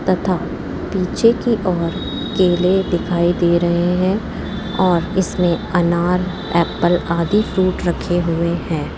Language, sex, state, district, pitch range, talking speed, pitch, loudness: Hindi, female, Rajasthan, Jaipur, 170-190 Hz, 120 wpm, 180 Hz, -18 LUFS